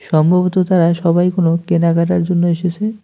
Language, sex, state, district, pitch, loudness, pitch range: Bengali, male, West Bengal, Cooch Behar, 175 Hz, -14 LUFS, 170-180 Hz